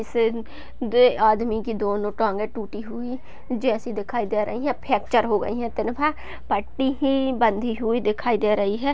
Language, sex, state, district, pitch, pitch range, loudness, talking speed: Hindi, female, Uttar Pradesh, Jyotiba Phule Nagar, 230 Hz, 215-245 Hz, -23 LUFS, 160 wpm